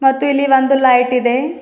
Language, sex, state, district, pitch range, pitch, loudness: Kannada, female, Karnataka, Bidar, 250-280 Hz, 265 Hz, -13 LUFS